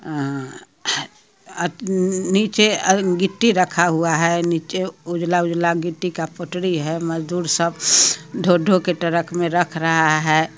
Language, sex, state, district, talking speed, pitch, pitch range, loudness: Hindi, male, Bihar, Muzaffarpur, 140 wpm, 175 Hz, 165-185 Hz, -19 LUFS